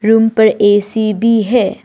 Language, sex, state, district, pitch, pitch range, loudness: Hindi, female, Arunachal Pradesh, Papum Pare, 220 Hz, 210-225 Hz, -12 LUFS